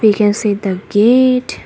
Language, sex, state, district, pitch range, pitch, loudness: English, female, Assam, Kamrup Metropolitan, 205-240 Hz, 210 Hz, -13 LUFS